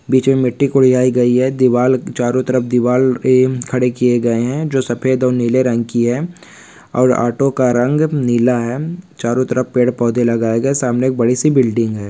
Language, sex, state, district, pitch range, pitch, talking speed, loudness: Hindi, male, Maharashtra, Pune, 120-130 Hz, 125 Hz, 200 wpm, -15 LUFS